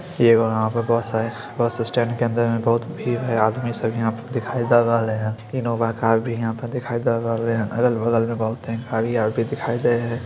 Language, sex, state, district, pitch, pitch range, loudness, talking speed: Maithili, male, Bihar, Samastipur, 115 Hz, 115-120 Hz, -22 LUFS, 180 wpm